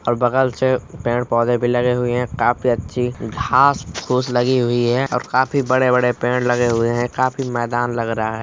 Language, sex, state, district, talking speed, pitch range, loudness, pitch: Hindi, male, Uttar Pradesh, Hamirpur, 205 wpm, 120-130 Hz, -18 LUFS, 125 Hz